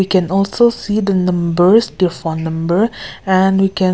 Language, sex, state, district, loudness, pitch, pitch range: English, female, Nagaland, Kohima, -15 LUFS, 190 Hz, 175-200 Hz